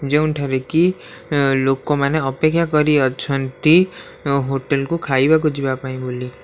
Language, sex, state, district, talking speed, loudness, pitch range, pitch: Odia, male, Odisha, Khordha, 120 wpm, -18 LUFS, 135-155 Hz, 140 Hz